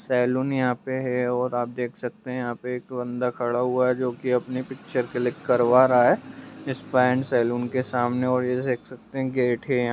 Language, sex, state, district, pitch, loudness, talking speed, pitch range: Hindi, male, Bihar, Vaishali, 125 Hz, -24 LUFS, 225 wpm, 125-130 Hz